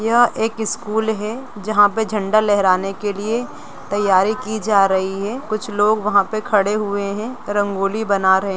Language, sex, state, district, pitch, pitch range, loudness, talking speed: Hindi, female, Bihar, Gopalganj, 210 Hz, 200-220 Hz, -18 LUFS, 180 wpm